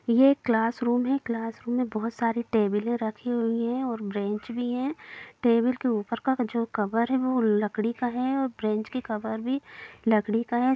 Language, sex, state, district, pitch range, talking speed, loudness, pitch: Hindi, female, Bihar, Gopalganj, 220-250 Hz, 200 wpm, -27 LUFS, 235 Hz